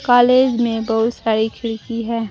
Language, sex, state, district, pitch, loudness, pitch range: Hindi, female, Bihar, Kaimur, 230 Hz, -17 LUFS, 225-240 Hz